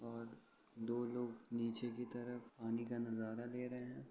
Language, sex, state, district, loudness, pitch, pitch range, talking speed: Hindi, male, Uttar Pradesh, Ghazipur, -45 LUFS, 120 Hz, 115-120 Hz, 175 wpm